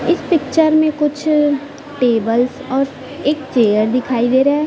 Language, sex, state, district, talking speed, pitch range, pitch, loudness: Hindi, female, Chhattisgarh, Raipur, 155 wpm, 250-300 Hz, 285 Hz, -16 LUFS